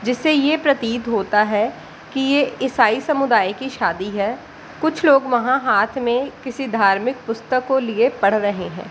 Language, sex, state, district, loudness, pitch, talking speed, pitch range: Hindi, female, Bihar, Jahanabad, -19 LUFS, 245 Hz, 170 wpm, 215-270 Hz